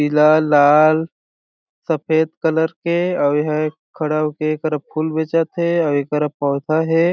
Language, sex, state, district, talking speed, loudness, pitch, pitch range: Chhattisgarhi, male, Chhattisgarh, Jashpur, 175 wpm, -18 LUFS, 155 Hz, 150-160 Hz